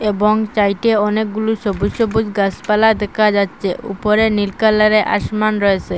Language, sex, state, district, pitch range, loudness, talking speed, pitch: Bengali, female, Assam, Hailakandi, 200-220 Hz, -16 LUFS, 130 wpm, 210 Hz